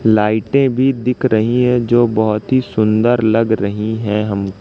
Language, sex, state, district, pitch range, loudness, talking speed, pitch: Hindi, male, Madhya Pradesh, Katni, 105-125 Hz, -15 LUFS, 170 wpm, 110 Hz